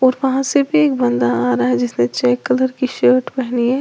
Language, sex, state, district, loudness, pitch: Hindi, female, Uttar Pradesh, Lalitpur, -16 LUFS, 245 Hz